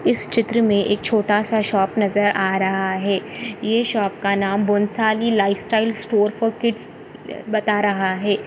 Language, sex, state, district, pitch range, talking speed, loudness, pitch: Hindi, female, Maharashtra, Nagpur, 200-220 Hz, 170 wpm, -18 LUFS, 205 Hz